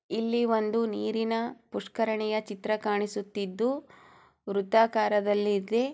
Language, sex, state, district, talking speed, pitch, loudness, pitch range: Kannada, female, Karnataka, Chamarajanagar, 80 wpm, 220 Hz, -28 LUFS, 205-230 Hz